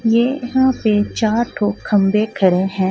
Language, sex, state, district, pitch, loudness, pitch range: Hindi, female, Jharkhand, Ranchi, 215 Hz, -17 LUFS, 200-240 Hz